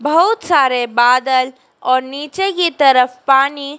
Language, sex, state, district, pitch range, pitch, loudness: Hindi, female, Madhya Pradesh, Dhar, 255-295 Hz, 270 Hz, -14 LUFS